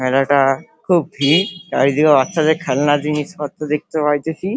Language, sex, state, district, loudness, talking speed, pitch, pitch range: Bengali, male, West Bengal, Paschim Medinipur, -17 LUFS, 130 wpm, 150 Hz, 140-165 Hz